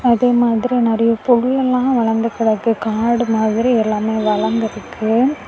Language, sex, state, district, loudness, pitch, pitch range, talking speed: Tamil, female, Tamil Nadu, Kanyakumari, -16 LUFS, 230 Hz, 220-245 Hz, 110 wpm